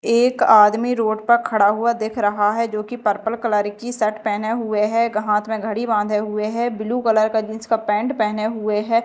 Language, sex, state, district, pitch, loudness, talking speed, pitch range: Hindi, female, Madhya Pradesh, Dhar, 220 Hz, -19 LUFS, 225 wpm, 210-230 Hz